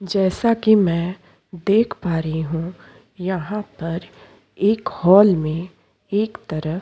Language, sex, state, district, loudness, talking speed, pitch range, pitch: Hindi, female, Chhattisgarh, Korba, -20 LUFS, 130 wpm, 165-205 Hz, 185 Hz